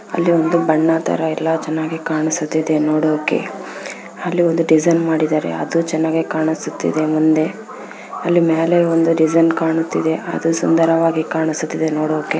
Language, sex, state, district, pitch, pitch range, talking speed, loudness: Kannada, female, Karnataka, Bellary, 160 Hz, 155-165 Hz, 120 wpm, -17 LUFS